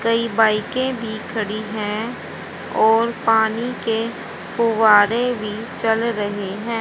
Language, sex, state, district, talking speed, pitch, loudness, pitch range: Hindi, female, Haryana, Rohtak, 115 wpm, 225 Hz, -20 LUFS, 215-230 Hz